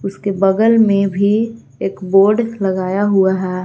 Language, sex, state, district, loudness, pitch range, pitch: Hindi, female, Jharkhand, Garhwa, -15 LUFS, 190-210 Hz, 195 Hz